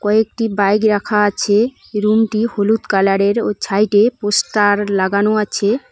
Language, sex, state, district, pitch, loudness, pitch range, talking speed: Bengali, female, West Bengal, Cooch Behar, 210 Hz, -15 LUFS, 205-220 Hz, 120 wpm